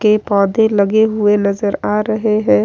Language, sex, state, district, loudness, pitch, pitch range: Hindi, female, Bihar, Kishanganj, -14 LUFS, 210 Hz, 200-215 Hz